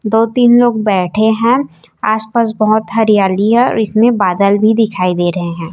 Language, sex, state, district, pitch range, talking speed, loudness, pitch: Hindi, female, Chhattisgarh, Raipur, 200-230 Hz, 190 wpm, -12 LUFS, 215 Hz